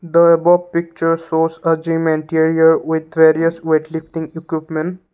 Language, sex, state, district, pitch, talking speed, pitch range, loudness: English, male, Assam, Kamrup Metropolitan, 160 Hz, 130 wpm, 160-165 Hz, -16 LUFS